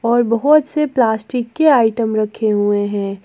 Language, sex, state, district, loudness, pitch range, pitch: Hindi, female, Jharkhand, Garhwa, -16 LUFS, 215-255 Hz, 230 Hz